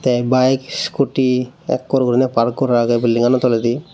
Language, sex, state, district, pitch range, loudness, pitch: Chakma, male, Tripura, Dhalai, 120-130 Hz, -16 LUFS, 125 Hz